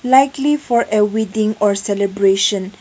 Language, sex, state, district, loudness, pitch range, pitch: English, female, Nagaland, Kohima, -16 LUFS, 200-240 Hz, 215 Hz